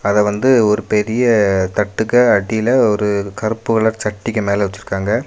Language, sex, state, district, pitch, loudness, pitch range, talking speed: Tamil, male, Tamil Nadu, Kanyakumari, 105 Hz, -16 LUFS, 100-115 Hz, 135 wpm